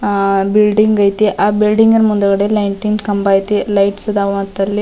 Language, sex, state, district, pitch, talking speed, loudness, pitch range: Kannada, female, Karnataka, Dharwad, 205 Hz, 185 wpm, -13 LUFS, 200-210 Hz